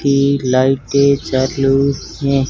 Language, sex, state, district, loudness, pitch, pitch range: Hindi, male, Rajasthan, Barmer, -15 LUFS, 135 Hz, 130-140 Hz